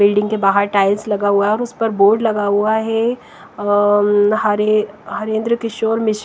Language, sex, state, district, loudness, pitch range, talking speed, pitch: Hindi, female, Bihar, West Champaran, -16 LUFS, 205-220 Hz, 185 wpm, 210 Hz